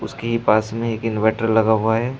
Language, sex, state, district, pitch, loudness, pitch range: Hindi, male, Uttar Pradesh, Shamli, 110 Hz, -19 LUFS, 110-115 Hz